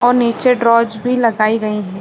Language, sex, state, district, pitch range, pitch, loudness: Hindi, female, Bihar, Saran, 215-245 Hz, 230 Hz, -14 LUFS